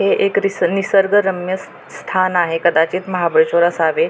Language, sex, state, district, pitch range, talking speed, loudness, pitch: Marathi, female, Maharashtra, Pune, 170-195 Hz, 145 wpm, -16 LUFS, 185 Hz